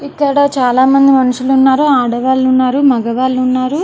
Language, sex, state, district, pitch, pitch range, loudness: Telugu, female, Andhra Pradesh, Srikakulam, 260 Hz, 255-275 Hz, -11 LUFS